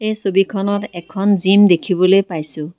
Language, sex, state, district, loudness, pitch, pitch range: Assamese, female, Assam, Kamrup Metropolitan, -15 LUFS, 195 Hz, 175-200 Hz